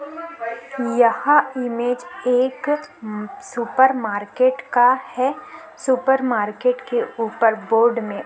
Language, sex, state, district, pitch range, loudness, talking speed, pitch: Hindi, female, Chhattisgarh, Korba, 230-265 Hz, -20 LUFS, 95 wpm, 250 Hz